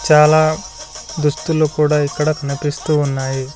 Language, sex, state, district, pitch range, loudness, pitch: Telugu, male, Andhra Pradesh, Sri Satya Sai, 145-155 Hz, -16 LUFS, 150 Hz